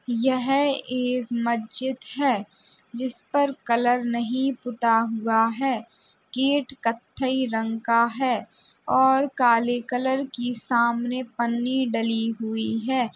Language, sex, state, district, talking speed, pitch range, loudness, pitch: Hindi, female, Uttar Pradesh, Jalaun, 115 wpm, 230-260 Hz, -24 LUFS, 245 Hz